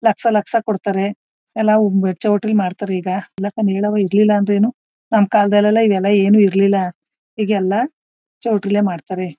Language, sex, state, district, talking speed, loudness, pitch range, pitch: Kannada, female, Karnataka, Mysore, 95 wpm, -17 LUFS, 195-215 Hz, 205 Hz